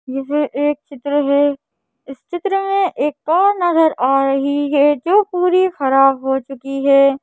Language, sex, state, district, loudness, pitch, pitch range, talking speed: Hindi, female, Madhya Pradesh, Bhopal, -16 LUFS, 290 Hz, 275-350 Hz, 160 wpm